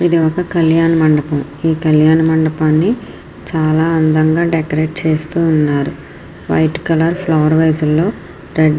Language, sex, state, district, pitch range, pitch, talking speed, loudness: Telugu, female, Andhra Pradesh, Srikakulam, 155-165 Hz, 160 Hz, 130 wpm, -14 LUFS